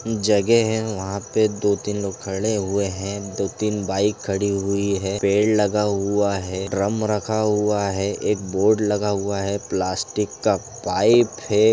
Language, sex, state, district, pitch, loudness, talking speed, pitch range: Hindi, male, Chhattisgarh, Rajnandgaon, 100 Hz, -21 LUFS, 170 wpm, 100-105 Hz